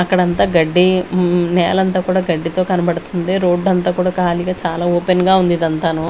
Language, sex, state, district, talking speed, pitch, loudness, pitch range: Telugu, female, Andhra Pradesh, Manyam, 175 wpm, 180 Hz, -15 LUFS, 175-185 Hz